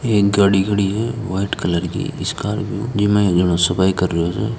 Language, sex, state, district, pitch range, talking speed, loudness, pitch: Marwari, male, Rajasthan, Nagaur, 90-105 Hz, 195 wpm, -18 LUFS, 100 Hz